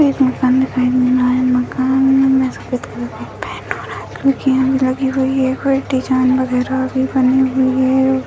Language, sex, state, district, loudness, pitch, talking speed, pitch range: Hindi, female, Bihar, Bhagalpur, -16 LUFS, 260 Hz, 210 wpm, 255-265 Hz